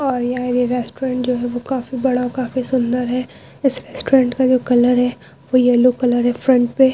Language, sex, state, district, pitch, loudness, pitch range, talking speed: Hindi, female, Bihar, Vaishali, 250 Hz, -17 LUFS, 245-260 Hz, 215 wpm